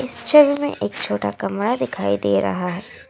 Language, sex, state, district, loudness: Hindi, female, Assam, Kamrup Metropolitan, -19 LUFS